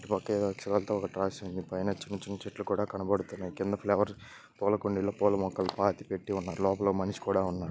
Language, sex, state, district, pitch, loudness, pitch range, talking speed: Telugu, male, Karnataka, Belgaum, 100 Hz, -32 LUFS, 95-100 Hz, 165 wpm